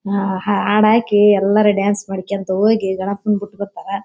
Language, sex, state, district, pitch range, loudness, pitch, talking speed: Kannada, female, Karnataka, Bellary, 195-210 Hz, -16 LUFS, 200 Hz, 150 wpm